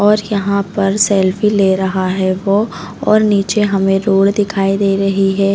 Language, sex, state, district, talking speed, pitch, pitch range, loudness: Hindi, female, Chhattisgarh, Raigarh, 175 wpm, 195 Hz, 195-205 Hz, -14 LUFS